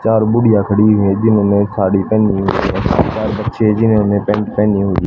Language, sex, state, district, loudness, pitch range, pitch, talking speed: Hindi, male, Haryana, Jhajjar, -14 LUFS, 100-110 Hz, 105 Hz, 200 wpm